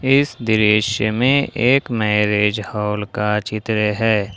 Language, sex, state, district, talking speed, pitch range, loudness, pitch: Hindi, male, Jharkhand, Ranchi, 125 wpm, 105-120 Hz, -18 LUFS, 110 Hz